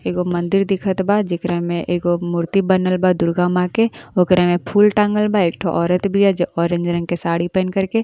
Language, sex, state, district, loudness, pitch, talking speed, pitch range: Bhojpuri, female, Uttar Pradesh, Ghazipur, -18 LUFS, 180 Hz, 225 wpm, 175-195 Hz